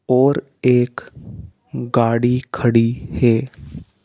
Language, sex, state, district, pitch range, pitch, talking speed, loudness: Hindi, male, Madhya Pradesh, Dhar, 110-125 Hz, 120 Hz, 75 wpm, -17 LUFS